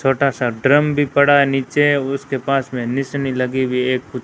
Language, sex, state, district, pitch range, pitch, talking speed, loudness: Hindi, female, Rajasthan, Bikaner, 130-140 Hz, 135 Hz, 200 wpm, -17 LUFS